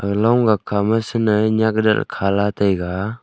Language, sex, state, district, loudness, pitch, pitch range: Wancho, male, Arunachal Pradesh, Longding, -18 LUFS, 105 Hz, 100-110 Hz